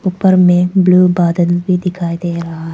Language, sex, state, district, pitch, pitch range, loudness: Hindi, female, Arunachal Pradesh, Papum Pare, 180 Hz, 170-180 Hz, -13 LUFS